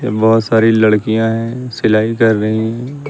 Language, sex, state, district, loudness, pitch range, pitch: Hindi, male, Uttar Pradesh, Lucknow, -14 LUFS, 110-115 Hz, 115 Hz